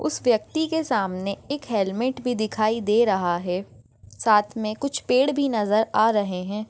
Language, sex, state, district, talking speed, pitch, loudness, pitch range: Hindi, female, Maharashtra, Sindhudurg, 180 wpm, 215 Hz, -23 LUFS, 190-245 Hz